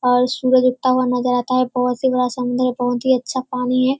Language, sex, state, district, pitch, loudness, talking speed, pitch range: Hindi, female, Bihar, Kishanganj, 255 Hz, -18 LUFS, 255 wpm, 250-255 Hz